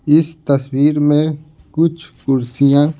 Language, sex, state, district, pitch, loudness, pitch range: Hindi, male, Bihar, Patna, 150 Hz, -15 LUFS, 140-155 Hz